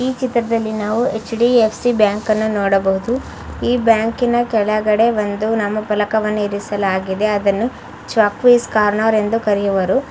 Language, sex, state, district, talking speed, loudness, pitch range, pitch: Kannada, female, Karnataka, Mysore, 125 wpm, -17 LUFS, 205-230 Hz, 215 Hz